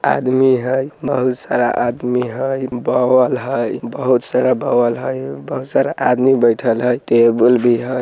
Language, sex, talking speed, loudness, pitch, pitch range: Bhojpuri, male, 150 wpm, -16 LUFS, 125 Hz, 120-130 Hz